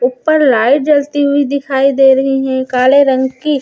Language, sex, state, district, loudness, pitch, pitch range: Hindi, female, Chhattisgarh, Raipur, -11 LUFS, 270 Hz, 260-285 Hz